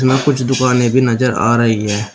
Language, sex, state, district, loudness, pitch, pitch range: Hindi, male, Uttar Pradesh, Shamli, -14 LUFS, 125 Hz, 115-130 Hz